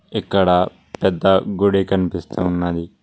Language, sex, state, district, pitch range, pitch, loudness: Telugu, male, Telangana, Mahabubabad, 90-95 Hz, 95 Hz, -18 LUFS